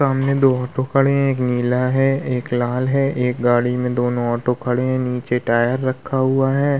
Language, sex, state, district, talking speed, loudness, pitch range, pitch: Hindi, male, Bihar, Vaishali, 205 wpm, -19 LUFS, 125-135 Hz, 125 Hz